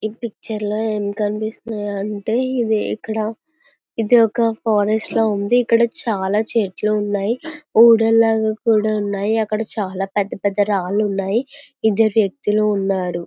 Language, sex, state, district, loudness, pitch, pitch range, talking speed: Telugu, female, Andhra Pradesh, Visakhapatnam, -19 LUFS, 215 Hz, 205-230 Hz, 115 wpm